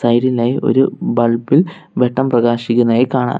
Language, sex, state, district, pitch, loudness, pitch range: Malayalam, male, Kerala, Kollam, 120 Hz, -15 LUFS, 120-130 Hz